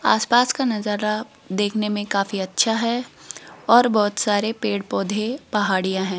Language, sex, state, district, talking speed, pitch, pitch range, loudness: Hindi, female, Rajasthan, Jaipur, 145 wpm, 210 Hz, 200-230 Hz, -21 LUFS